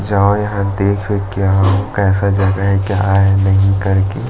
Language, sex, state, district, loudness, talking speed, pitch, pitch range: Hindi, male, Chhattisgarh, Jashpur, -14 LUFS, 210 wpm, 100 Hz, 95-100 Hz